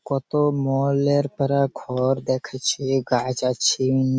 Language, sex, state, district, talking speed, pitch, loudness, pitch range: Bengali, male, West Bengal, Malda, 100 wpm, 135 Hz, -22 LUFS, 130-140 Hz